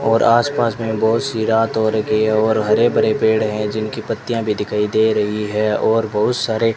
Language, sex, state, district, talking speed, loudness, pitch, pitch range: Hindi, male, Rajasthan, Bikaner, 230 wpm, -17 LUFS, 110 Hz, 110-115 Hz